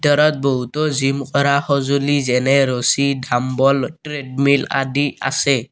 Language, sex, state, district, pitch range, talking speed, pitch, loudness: Assamese, male, Assam, Kamrup Metropolitan, 135-140 Hz, 115 wpm, 140 Hz, -17 LUFS